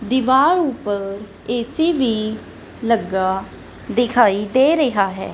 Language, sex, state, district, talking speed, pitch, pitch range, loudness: Punjabi, female, Punjab, Kapurthala, 100 wpm, 230 Hz, 200-260 Hz, -18 LUFS